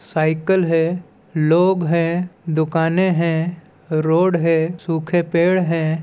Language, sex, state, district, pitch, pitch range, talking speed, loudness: Hindi, female, Chhattisgarh, Balrampur, 170 Hz, 160-180 Hz, 110 wpm, -18 LUFS